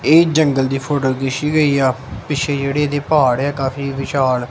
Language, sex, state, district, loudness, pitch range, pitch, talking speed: Punjabi, male, Punjab, Kapurthala, -17 LUFS, 135-145 Hz, 140 Hz, 185 wpm